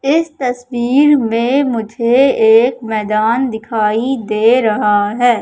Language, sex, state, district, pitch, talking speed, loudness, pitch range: Hindi, female, Madhya Pradesh, Katni, 235 Hz, 110 wpm, -13 LUFS, 220-260 Hz